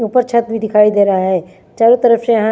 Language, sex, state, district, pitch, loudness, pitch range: Hindi, female, Chandigarh, Chandigarh, 225 Hz, -13 LUFS, 205-235 Hz